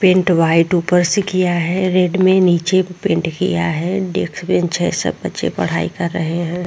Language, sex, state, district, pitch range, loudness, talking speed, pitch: Hindi, female, Bihar, Vaishali, 170-185 Hz, -16 LUFS, 190 wpm, 180 Hz